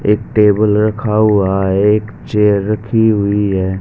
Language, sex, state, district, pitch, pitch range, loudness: Hindi, male, Haryana, Rohtak, 105 Hz, 100-110 Hz, -13 LUFS